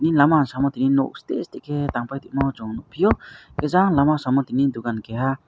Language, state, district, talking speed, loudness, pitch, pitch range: Kokborok, Tripura, West Tripura, 220 wpm, -22 LUFS, 135 Hz, 130-145 Hz